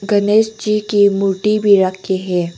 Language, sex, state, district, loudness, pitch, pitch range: Hindi, female, Arunachal Pradesh, Longding, -15 LUFS, 200 Hz, 190-210 Hz